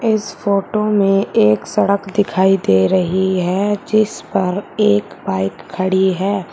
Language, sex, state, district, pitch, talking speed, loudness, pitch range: Hindi, female, Uttar Pradesh, Shamli, 195 Hz, 140 wpm, -16 LUFS, 185-205 Hz